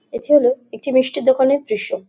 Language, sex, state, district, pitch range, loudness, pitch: Bengali, female, West Bengal, Jhargram, 225-275 Hz, -17 LUFS, 260 Hz